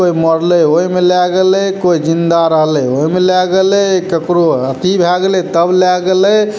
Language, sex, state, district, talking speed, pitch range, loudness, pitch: Maithili, male, Bihar, Samastipur, 180 wpm, 165-185 Hz, -11 LUFS, 180 Hz